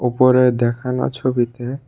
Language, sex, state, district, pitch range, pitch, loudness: Bengali, male, Tripura, West Tripura, 120-130 Hz, 125 Hz, -18 LUFS